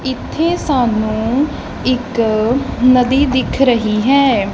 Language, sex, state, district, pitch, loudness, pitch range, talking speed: Punjabi, female, Punjab, Kapurthala, 255 Hz, -15 LUFS, 225-270 Hz, 95 wpm